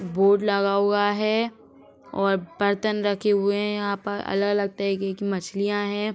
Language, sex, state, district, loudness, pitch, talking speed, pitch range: Hindi, female, Uttar Pradesh, Etah, -24 LUFS, 200 Hz, 155 wpm, 200-205 Hz